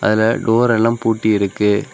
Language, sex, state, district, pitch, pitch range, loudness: Tamil, male, Tamil Nadu, Kanyakumari, 110 Hz, 105-115 Hz, -16 LUFS